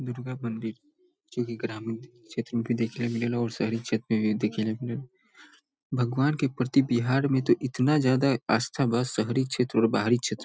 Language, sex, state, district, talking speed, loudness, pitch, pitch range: Bhojpuri, male, Bihar, Saran, 185 wpm, -27 LUFS, 120 Hz, 115-130 Hz